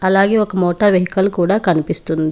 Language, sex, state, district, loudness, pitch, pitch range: Telugu, female, Telangana, Komaram Bheem, -15 LUFS, 185 Hz, 175-200 Hz